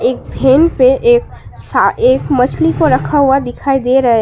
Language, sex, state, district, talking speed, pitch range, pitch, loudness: Hindi, female, Assam, Sonitpur, 200 wpm, 255-430 Hz, 275 Hz, -12 LUFS